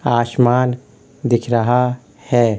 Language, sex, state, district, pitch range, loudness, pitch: Hindi, male, Uttar Pradesh, Hamirpur, 120-125 Hz, -17 LUFS, 125 Hz